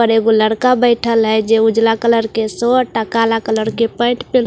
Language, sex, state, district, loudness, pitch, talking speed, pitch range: Hindi, female, Bihar, Katihar, -14 LUFS, 225 Hz, 230 wpm, 225-235 Hz